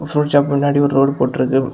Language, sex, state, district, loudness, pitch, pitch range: Tamil, male, Tamil Nadu, Kanyakumari, -16 LUFS, 140 Hz, 135-145 Hz